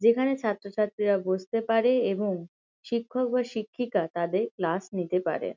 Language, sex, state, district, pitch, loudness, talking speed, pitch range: Bengali, female, West Bengal, Kolkata, 210 Hz, -28 LUFS, 130 wpm, 185-235 Hz